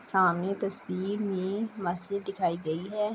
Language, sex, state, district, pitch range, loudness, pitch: Urdu, female, Andhra Pradesh, Anantapur, 185-205 Hz, -30 LUFS, 195 Hz